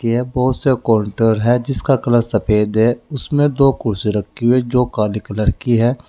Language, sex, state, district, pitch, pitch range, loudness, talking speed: Hindi, male, Uttar Pradesh, Saharanpur, 120 Hz, 110-130 Hz, -16 LUFS, 185 wpm